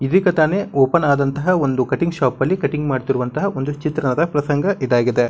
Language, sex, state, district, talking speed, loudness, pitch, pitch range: Kannada, male, Karnataka, Bijapur, 160 wpm, -18 LUFS, 145 Hz, 135-170 Hz